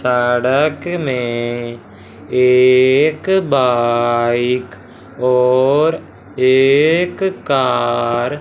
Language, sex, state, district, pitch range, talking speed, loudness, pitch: Hindi, male, Punjab, Fazilka, 120-140 Hz, 55 wpm, -15 LUFS, 125 Hz